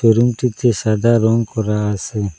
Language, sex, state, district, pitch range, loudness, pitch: Bengali, male, Assam, Hailakandi, 105-115 Hz, -17 LUFS, 115 Hz